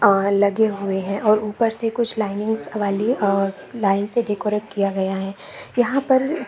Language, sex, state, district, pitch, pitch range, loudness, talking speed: Hindi, female, Jharkhand, Jamtara, 205 Hz, 200-225 Hz, -21 LUFS, 175 wpm